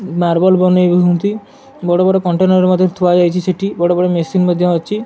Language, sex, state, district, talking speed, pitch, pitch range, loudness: Odia, male, Odisha, Malkangiri, 190 wpm, 180 Hz, 175-185 Hz, -13 LUFS